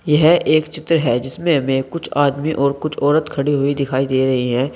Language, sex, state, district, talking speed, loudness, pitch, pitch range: Hindi, male, Uttar Pradesh, Saharanpur, 215 wpm, -17 LUFS, 145 Hz, 135-155 Hz